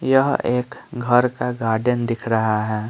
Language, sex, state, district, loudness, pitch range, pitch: Hindi, male, Bihar, Patna, -20 LUFS, 110-125 Hz, 120 Hz